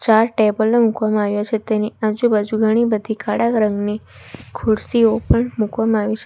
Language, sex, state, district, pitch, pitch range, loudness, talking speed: Gujarati, female, Gujarat, Valsad, 220 Hz, 215-225 Hz, -18 LUFS, 165 wpm